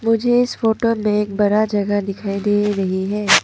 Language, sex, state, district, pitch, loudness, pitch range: Hindi, female, Arunachal Pradesh, Papum Pare, 210 Hz, -18 LUFS, 200-225 Hz